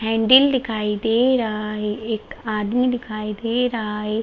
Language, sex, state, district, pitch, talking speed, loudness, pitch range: Hindi, female, Bihar, Darbhanga, 220 Hz, 170 wpm, -20 LUFS, 215-240 Hz